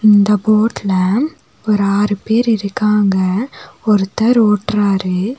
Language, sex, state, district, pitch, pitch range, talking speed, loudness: Tamil, female, Tamil Nadu, Nilgiris, 210 Hz, 200-220 Hz, 90 wpm, -15 LUFS